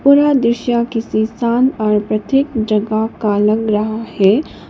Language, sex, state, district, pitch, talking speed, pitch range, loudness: Hindi, female, Sikkim, Gangtok, 220 Hz, 155 wpm, 215-240 Hz, -15 LUFS